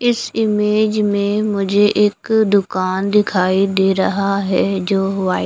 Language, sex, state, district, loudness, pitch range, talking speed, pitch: Hindi, female, Bihar, Katihar, -16 LUFS, 195-210 Hz, 130 wpm, 200 Hz